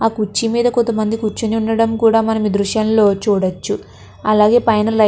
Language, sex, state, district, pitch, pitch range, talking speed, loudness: Telugu, female, Andhra Pradesh, Krishna, 220 Hz, 210-225 Hz, 175 wpm, -16 LUFS